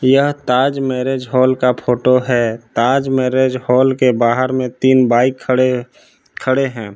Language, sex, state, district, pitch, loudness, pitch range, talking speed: Hindi, male, Jharkhand, Palamu, 130 Hz, -15 LUFS, 125-130 Hz, 155 wpm